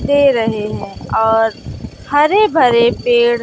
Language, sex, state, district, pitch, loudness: Hindi, female, Bihar, West Champaran, 280 Hz, -14 LUFS